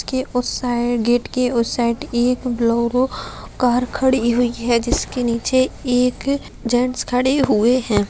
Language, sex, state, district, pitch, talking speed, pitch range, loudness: Hindi, female, Bihar, Lakhisarai, 245 Hz, 150 wpm, 235-255 Hz, -19 LUFS